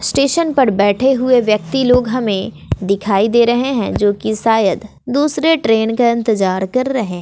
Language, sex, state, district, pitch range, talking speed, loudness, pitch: Hindi, female, Bihar, West Champaran, 205-260 Hz, 165 wpm, -15 LUFS, 235 Hz